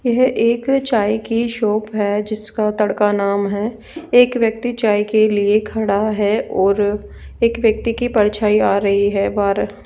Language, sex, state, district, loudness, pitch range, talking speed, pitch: Hindi, female, Rajasthan, Jaipur, -17 LUFS, 205-230 Hz, 160 wpm, 215 Hz